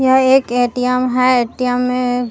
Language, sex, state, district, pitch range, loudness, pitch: Hindi, female, Bihar, Vaishali, 245-255 Hz, -15 LUFS, 250 Hz